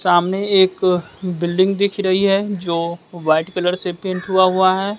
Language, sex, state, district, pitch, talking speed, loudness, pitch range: Hindi, male, Bihar, West Champaran, 185 Hz, 170 wpm, -18 LUFS, 175-195 Hz